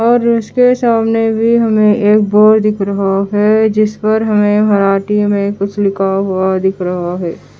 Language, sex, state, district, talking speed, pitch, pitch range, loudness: Hindi, female, Haryana, Charkhi Dadri, 165 wpm, 210 Hz, 195-220 Hz, -12 LUFS